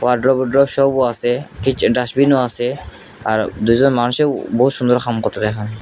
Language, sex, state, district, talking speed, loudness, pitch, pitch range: Bengali, male, Assam, Hailakandi, 165 wpm, -16 LUFS, 125 Hz, 120-135 Hz